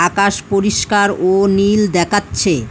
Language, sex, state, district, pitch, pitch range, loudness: Bengali, female, West Bengal, Alipurduar, 200 Hz, 180-205 Hz, -14 LUFS